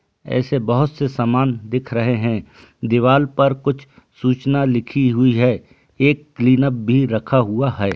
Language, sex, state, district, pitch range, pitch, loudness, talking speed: Hindi, male, Bihar, Gaya, 120-135 Hz, 125 Hz, -18 LUFS, 160 wpm